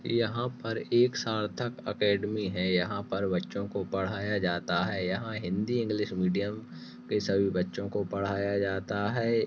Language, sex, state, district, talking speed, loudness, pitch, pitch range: Hindi, male, Chhattisgarh, Rajnandgaon, 150 wpm, -30 LUFS, 100 Hz, 95-110 Hz